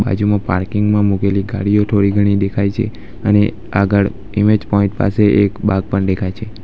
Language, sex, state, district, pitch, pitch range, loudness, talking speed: Gujarati, male, Gujarat, Valsad, 100 Hz, 100-105 Hz, -15 LUFS, 170 wpm